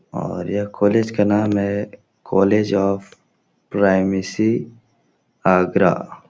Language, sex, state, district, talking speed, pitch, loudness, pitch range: Hindi, male, Uttar Pradesh, Etah, 95 wpm, 100 Hz, -19 LUFS, 100-105 Hz